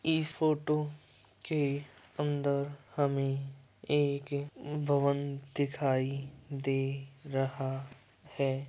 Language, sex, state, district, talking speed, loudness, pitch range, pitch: Hindi, male, Uttar Pradesh, Muzaffarnagar, 75 wpm, -33 LUFS, 135-145 Hz, 140 Hz